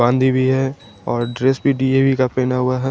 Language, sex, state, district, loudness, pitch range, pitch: Hindi, male, Chandigarh, Chandigarh, -18 LUFS, 125-135 Hz, 130 Hz